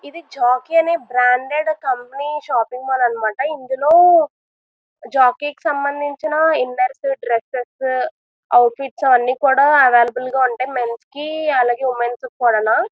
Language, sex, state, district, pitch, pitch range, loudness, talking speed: Telugu, female, Andhra Pradesh, Visakhapatnam, 260 Hz, 245-295 Hz, -17 LUFS, 120 wpm